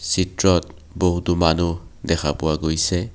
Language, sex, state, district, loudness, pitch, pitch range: Assamese, male, Assam, Kamrup Metropolitan, -21 LUFS, 85 Hz, 80-90 Hz